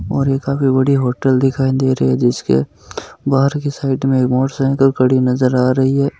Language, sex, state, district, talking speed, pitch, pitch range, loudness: Marwari, male, Rajasthan, Nagaur, 205 wpm, 135 Hz, 130-135 Hz, -15 LUFS